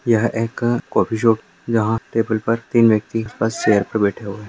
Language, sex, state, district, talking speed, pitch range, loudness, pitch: Hindi, male, Karnataka, Raichur, 200 wpm, 110-115 Hz, -19 LUFS, 115 Hz